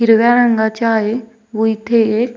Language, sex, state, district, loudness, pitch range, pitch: Marathi, female, Maharashtra, Dhule, -14 LUFS, 220-235 Hz, 225 Hz